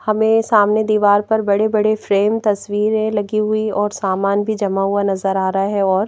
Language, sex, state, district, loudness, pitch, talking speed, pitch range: Hindi, female, Madhya Pradesh, Bhopal, -17 LUFS, 205 Hz, 195 wpm, 200-215 Hz